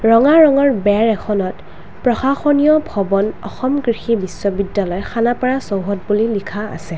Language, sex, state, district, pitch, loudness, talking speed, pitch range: Assamese, female, Assam, Kamrup Metropolitan, 220 Hz, -16 LUFS, 120 wpm, 200-255 Hz